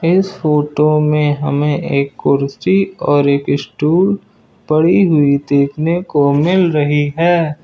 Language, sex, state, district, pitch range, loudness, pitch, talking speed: Hindi, male, Uttar Pradesh, Lucknow, 145-170 Hz, -14 LUFS, 150 Hz, 125 wpm